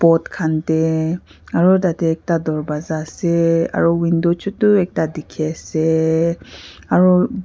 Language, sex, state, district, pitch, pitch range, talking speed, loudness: Nagamese, female, Nagaland, Kohima, 160 Hz, 155-170 Hz, 115 wpm, -18 LUFS